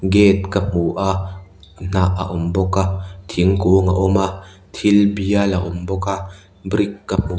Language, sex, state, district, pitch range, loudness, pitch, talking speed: Mizo, male, Mizoram, Aizawl, 95-100 Hz, -18 LUFS, 95 Hz, 180 wpm